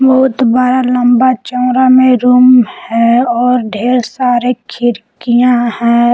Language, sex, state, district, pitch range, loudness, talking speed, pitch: Hindi, female, Jharkhand, Palamu, 240-255 Hz, -10 LUFS, 115 wpm, 250 Hz